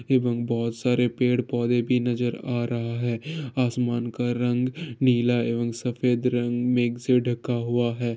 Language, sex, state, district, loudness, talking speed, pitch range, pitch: Hindi, male, Bihar, Gopalganj, -25 LUFS, 160 wpm, 120-125 Hz, 120 Hz